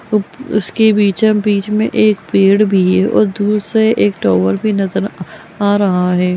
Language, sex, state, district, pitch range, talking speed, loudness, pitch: Magahi, female, Bihar, Gaya, 190-215 Hz, 190 wpm, -13 LUFS, 205 Hz